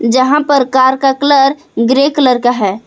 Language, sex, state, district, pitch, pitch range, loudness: Hindi, female, Jharkhand, Palamu, 265 Hz, 245-280 Hz, -11 LUFS